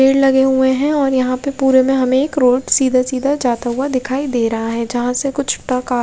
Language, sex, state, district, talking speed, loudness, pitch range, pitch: Hindi, female, Odisha, Khordha, 250 wpm, -16 LUFS, 250-270 Hz, 260 Hz